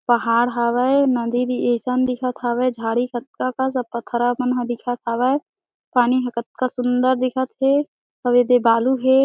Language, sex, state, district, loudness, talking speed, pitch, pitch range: Chhattisgarhi, female, Chhattisgarh, Sarguja, -20 LUFS, 170 wpm, 245 Hz, 240-255 Hz